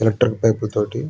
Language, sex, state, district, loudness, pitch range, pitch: Telugu, male, Andhra Pradesh, Srikakulam, -20 LUFS, 110-120 Hz, 110 Hz